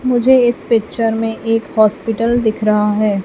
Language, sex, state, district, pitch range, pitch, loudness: Hindi, female, Chhattisgarh, Raipur, 215-235 Hz, 225 Hz, -15 LUFS